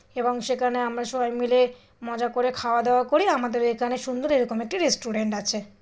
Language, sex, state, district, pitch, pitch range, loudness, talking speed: Bengali, female, West Bengal, Kolkata, 245 Hz, 235-255 Hz, -24 LUFS, 185 wpm